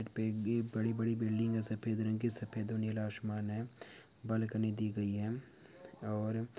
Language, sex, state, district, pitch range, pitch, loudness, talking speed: Hindi, male, Bihar, Araria, 110-115 Hz, 110 Hz, -37 LUFS, 155 wpm